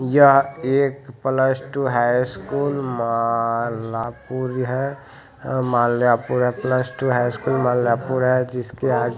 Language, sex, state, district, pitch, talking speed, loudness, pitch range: Hindi, male, Bihar, Jamui, 125 Hz, 125 wpm, -20 LUFS, 120-135 Hz